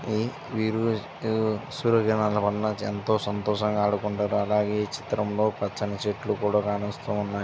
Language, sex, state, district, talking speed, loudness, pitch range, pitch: Telugu, male, Andhra Pradesh, Visakhapatnam, 130 wpm, -26 LUFS, 105-110 Hz, 105 Hz